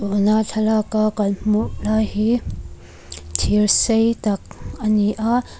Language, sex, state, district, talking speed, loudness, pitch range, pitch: Mizo, female, Mizoram, Aizawl, 130 wpm, -19 LUFS, 200-220 Hz, 210 Hz